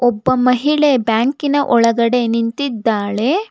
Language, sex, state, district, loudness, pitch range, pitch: Kannada, female, Karnataka, Bangalore, -15 LUFS, 230-280 Hz, 245 Hz